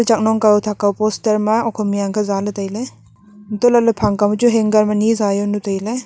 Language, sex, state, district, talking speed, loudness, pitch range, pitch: Wancho, female, Arunachal Pradesh, Longding, 250 wpm, -16 LUFS, 205-225 Hz, 210 Hz